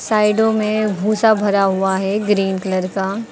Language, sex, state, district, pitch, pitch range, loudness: Hindi, female, Uttar Pradesh, Lucknow, 205 Hz, 195-215 Hz, -17 LUFS